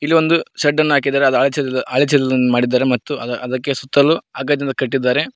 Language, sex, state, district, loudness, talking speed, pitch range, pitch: Kannada, male, Karnataka, Koppal, -16 LUFS, 135 wpm, 130-145 Hz, 140 Hz